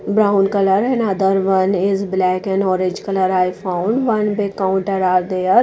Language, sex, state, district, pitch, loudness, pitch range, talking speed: English, female, Odisha, Nuapada, 195 Hz, -17 LUFS, 185-200 Hz, 180 wpm